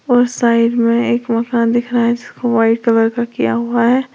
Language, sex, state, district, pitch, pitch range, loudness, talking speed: Hindi, female, Uttar Pradesh, Lalitpur, 235 Hz, 230-245 Hz, -15 LUFS, 205 wpm